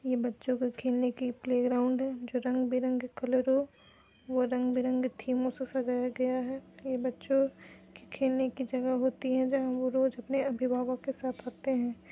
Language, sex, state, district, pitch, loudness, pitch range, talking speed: Hindi, female, Uttar Pradesh, Budaun, 255 Hz, -31 LUFS, 250-260 Hz, 180 wpm